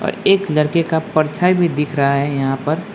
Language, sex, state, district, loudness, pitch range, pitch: Hindi, male, West Bengal, Alipurduar, -17 LUFS, 145-175 Hz, 155 Hz